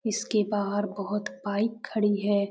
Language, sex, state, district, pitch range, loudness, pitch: Hindi, male, Bihar, Jamui, 205-215 Hz, -28 LUFS, 205 Hz